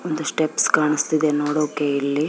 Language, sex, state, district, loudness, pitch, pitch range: Kannada, female, Karnataka, Bellary, -20 LUFS, 150 Hz, 145-155 Hz